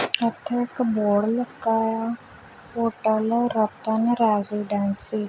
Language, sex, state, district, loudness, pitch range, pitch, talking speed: Punjabi, female, Punjab, Kapurthala, -24 LUFS, 215-235 Hz, 225 Hz, 100 wpm